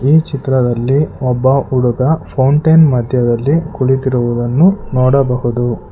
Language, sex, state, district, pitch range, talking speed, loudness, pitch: Kannada, male, Karnataka, Bangalore, 125-145 Hz, 80 wpm, -13 LUFS, 130 Hz